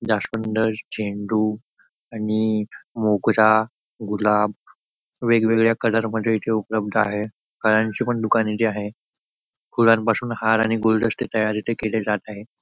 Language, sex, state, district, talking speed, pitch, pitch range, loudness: Marathi, male, Maharashtra, Nagpur, 120 wpm, 110 Hz, 105-115 Hz, -21 LUFS